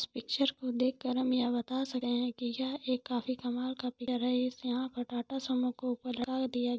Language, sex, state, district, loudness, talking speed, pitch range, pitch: Hindi, female, Jharkhand, Jamtara, -34 LUFS, 220 wpm, 245-255 Hz, 250 Hz